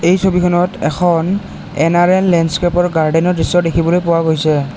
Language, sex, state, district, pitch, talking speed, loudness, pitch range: Assamese, male, Assam, Kamrup Metropolitan, 175 Hz, 150 wpm, -14 LUFS, 165-180 Hz